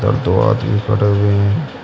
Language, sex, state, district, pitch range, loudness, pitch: Hindi, male, Uttar Pradesh, Shamli, 100-105 Hz, -15 LUFS, 105 Hz